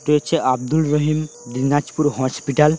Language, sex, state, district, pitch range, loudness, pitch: Bengali, male, West Bengal, Dakshin Dinajpur, 135-155 Hz, -19 LUFS, 150 Hz